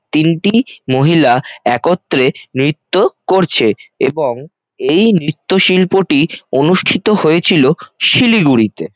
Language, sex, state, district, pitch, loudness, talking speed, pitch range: Bengali, male, West Bengal, Jalpaiguri, 170 Hz, -12 LUFS, 80 wpm, 145-200 Hz